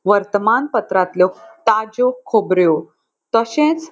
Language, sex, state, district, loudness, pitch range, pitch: Konkani, female, Goa, North and South Goa, -17 LUFS, 185-245 Hz, 220 Hz